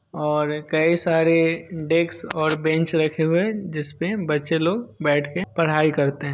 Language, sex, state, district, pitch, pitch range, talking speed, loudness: Hindi, male, Bihar, Sitamarhi, 160 Hz, 150-170 Hz, 160 wpm, -21 LUFS